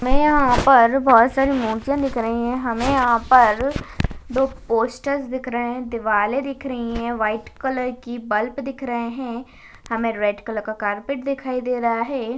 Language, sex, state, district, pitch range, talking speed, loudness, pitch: Hindi, female, Maharashtra, Aurangabad, 230-265 Hz, 175 wpm, -20 LUFS, 245 Hz